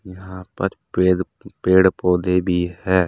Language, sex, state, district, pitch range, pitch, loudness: Hindi, male, Uttar Pradesh, Saharanpur, 90-95 Hz, 90 Hz, -19 LUFS